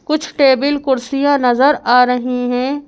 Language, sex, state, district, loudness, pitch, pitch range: Hindi, female, Madhya Pradesh, Bhopal, -14 LUFS, 270 Hz, 250-285 Hz